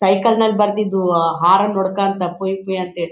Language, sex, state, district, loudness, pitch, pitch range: Kannada, male, Karnataka, Bellary, -17 LUFS, 190 Hz, 180-200 Hz